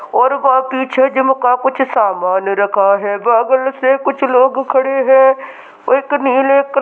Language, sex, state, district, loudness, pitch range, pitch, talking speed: Hindi, male, Bihar, Begusarai, -13 LUFS, 245-270 Hz, 265 Hz, 150 wpm